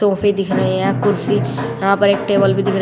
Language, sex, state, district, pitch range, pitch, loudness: Hindi, male, Uttar Pradesh, Shamli, 195-200 Hz, 200 Hz, -16 LUFS